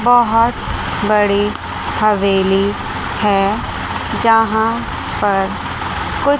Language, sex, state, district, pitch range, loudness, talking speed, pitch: Hindi, female, Chandigarh, Chandigarh, 200-225 Hz, -16 LUFS, 65 wpm, 210 Hz